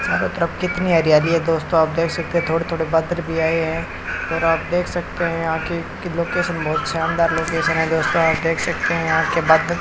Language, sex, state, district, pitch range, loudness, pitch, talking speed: Hindi, male, Rajasthan, Bikaner, 160-170 Hz, -19 LUFS, 165 Hz, 215 wpm